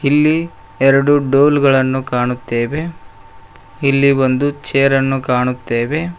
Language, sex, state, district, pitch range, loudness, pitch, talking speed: Kannada, male, Karnataka, Koppal, 125-145 Hz, -15 LUFS, 135 Hz, 75 wpm